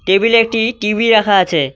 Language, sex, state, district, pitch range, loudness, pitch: Bengali, male, West Bengal, Cooch Behar, 195-225 Hz, -13 LUFS, 210 Hz